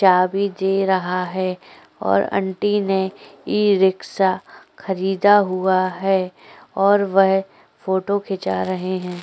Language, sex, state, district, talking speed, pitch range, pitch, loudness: Hindi, female, Chhattisgarh, Korba, 115 wpm, 185-195 Hz, 190 Hz, -19 LUFS